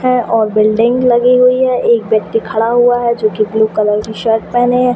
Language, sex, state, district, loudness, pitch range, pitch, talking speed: Hindi, female, Jharkhand, Sahebganj, -12 LUFS, 220-245 Hz, 230 Hz, 230 wpm